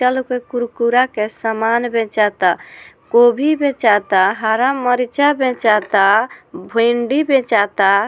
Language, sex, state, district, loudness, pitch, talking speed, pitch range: Bhojpuri, female, Bihar, Muzaffarpur, -15 LUFS, 235 Hz, 105 wpm, 210-250 Hz